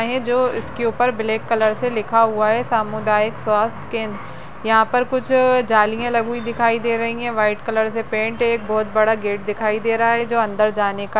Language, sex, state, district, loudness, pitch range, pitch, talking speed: Hindi, female, Uttarakhand, Tehri Garhwal, -19 LUFS, 215-235 Hz, 225 Hz, 220 wpm